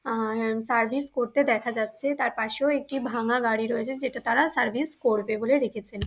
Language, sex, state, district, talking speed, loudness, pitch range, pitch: Bengali, female, West Bengal, Dakshin Dinajpur, 180 wpm, -26 LUFS, 225-275 Hz, 235 Hz